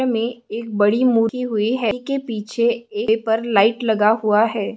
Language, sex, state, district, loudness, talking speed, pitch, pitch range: Hindi, female, Maharashtra, Sindhudurg, -19 LUFS, 175 wpm, 225 Hz, 215-235 Hz